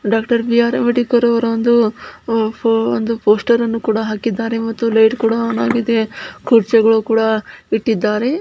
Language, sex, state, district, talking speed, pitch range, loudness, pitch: Kannada, female, Karnataka, Bellary, 115 wpm, 220-235 Hz, -15 LUFS, 230 Hz